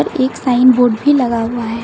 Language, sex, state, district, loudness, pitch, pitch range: Hindi, female, Uttar Pradesh, Lucknow, -13 LUFS, 245 Hz, 230-260 Hz